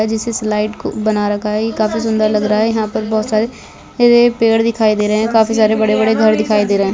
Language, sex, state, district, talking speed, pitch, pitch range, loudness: Hindi, female, Chhattisgarh, Bilaspur, 275 wpm, 215 Hz, 215-225 Hz, -14 LUFS